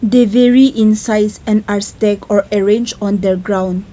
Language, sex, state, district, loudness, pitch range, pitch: English, female, Nagaland, Kohima, -13 LUFS, 200-220 Hz, 210 Hz